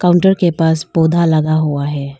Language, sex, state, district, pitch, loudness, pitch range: Hindi, female, Arunachal Pradesh, Longding, 160 Hz, -14 LUFS, 155-175 Hz